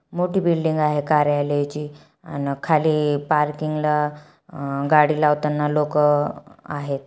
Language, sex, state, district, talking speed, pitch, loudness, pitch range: Marathi, female, Maharashtra, Aurangabad, 110 wpm, 150 Hz, -21 LUFS, 145-155 Hz